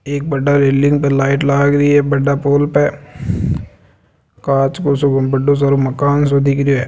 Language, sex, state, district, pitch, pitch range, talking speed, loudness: Marwari, male, Rajasthan, Nagaur, 140 Hz, 135-145 Hz, 165 wpm, -14 LUFS